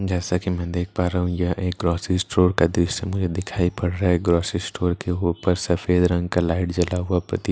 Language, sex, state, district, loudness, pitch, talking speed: Hindi, male, Bihar, Katihar, -22 LUFS, 90 Hz, 255 wpm